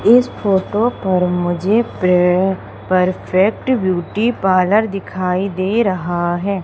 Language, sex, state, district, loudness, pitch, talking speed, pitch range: Hindi, female, Madhya Pradesh, Umaria, -16 LUFS, 190 Hz, 110 wpm, 180-210 Hz